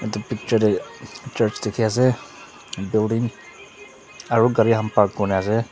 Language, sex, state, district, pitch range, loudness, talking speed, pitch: Nagamese, male, Nagaland, Dimapur, 105-115 Hz, -21 LUFS, 135 wpm, 110 Hz